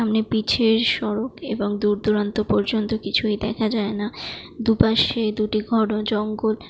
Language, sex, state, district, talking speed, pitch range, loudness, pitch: Bengali, female, West Bengal, Jalpaiguri, 145 wpm, 210-225 Hz, -22 LUFS, 215 Hz